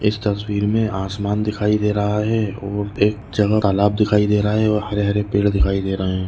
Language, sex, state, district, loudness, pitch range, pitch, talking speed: Hindi, male, Maharashtra, Nagpur, -19 LUFS, 100-105 Hz, 105 Hz, 220 wpm